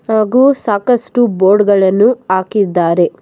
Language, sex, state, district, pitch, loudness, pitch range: Kannada, female, Karnataka, Bangalore, 210 Hz, -12 LUFS, 190-245 Hz